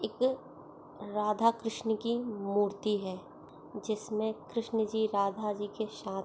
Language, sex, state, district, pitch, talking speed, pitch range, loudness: Hindi, female, Chhattisgarh, Bastar, 215 Hz, 115 wpm, 205-225 Hz, -33 LUFS